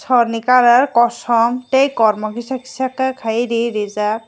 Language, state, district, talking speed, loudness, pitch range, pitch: Kokborok, Tripura, Dhalai, 155 wpm, -16 LUFS, 225-255 Hz, 235 Hz